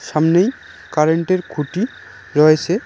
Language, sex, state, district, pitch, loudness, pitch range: Bengali, male, West Bengal, Cooch Behar, 165 Hz, -17 LUFS, 155-185 Hz